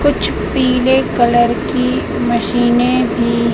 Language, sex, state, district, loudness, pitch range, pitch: Hindi, female, Madhya Pradesh, Umaria, -14 LUFS, 235-255 Hz, 240 Hz